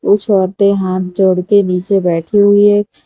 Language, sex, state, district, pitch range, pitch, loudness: Hindi, female, Gujarat, Valsad, 185-205 Hz, 195 Hz, -12 LUFS